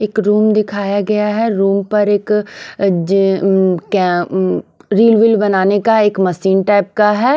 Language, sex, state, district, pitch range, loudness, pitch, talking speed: Hindi, female, Punjab, Pathankot, 190-215 Hz, -14 LUFS, 205 Hz, 140 wpm